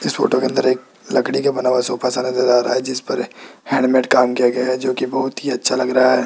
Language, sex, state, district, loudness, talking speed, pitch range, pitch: Hindi, male, Rajasthan, Jaipur, -18 LUFS, 270 wpm, 125-130 Hz, 130 Hz